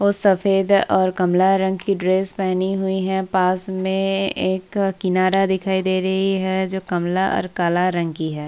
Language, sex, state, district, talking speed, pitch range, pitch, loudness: Hindi, female, Bihar, Kishanganj, 175 wpm, 185-195 Hz, 190 Hz, -20 LUFS